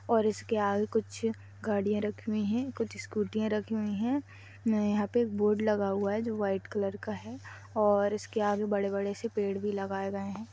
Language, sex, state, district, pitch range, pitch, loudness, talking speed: Hindi, female, Chhattisgarh, Kabirdham, 200-220 Hz, 210 Hz, -31 LUFS, 180 wpm